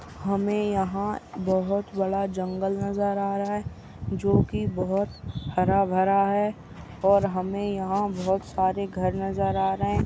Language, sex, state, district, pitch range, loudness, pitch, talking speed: Hindi, female, Maharashtra, Solapur, 190-200 Hz, -26 LUFS, 195 Hz, 150 wpm